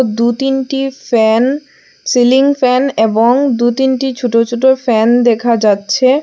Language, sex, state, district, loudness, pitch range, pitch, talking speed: Bengali, female, Assam, Hailakandi, -12 LUFS, 235-265 Hz, 250 Hz, 115 wpm